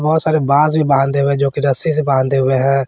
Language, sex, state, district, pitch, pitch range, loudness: Hindi, male, Jharkhand, Garhwa, 140 Hz, 135-155 Hz, -14 LUFS